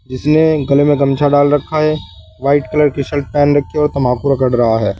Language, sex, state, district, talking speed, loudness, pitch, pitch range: Hindi, male, Uttar Pradesh, Saharanpur, 225 wpm, -14 LUFS, 145 Hz, 130-150 Hz